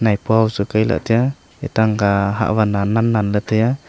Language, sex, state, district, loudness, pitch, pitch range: Wancho, male, Arunachal Pradesh, Longding, -17 LUFS, 110 Hz, 105-115 Hz